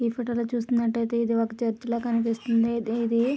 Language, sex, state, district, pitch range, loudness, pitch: Telugu, female, Andhra Pradesh, Krishna, 230-235 Hz, -26 LUFS, 235 Hz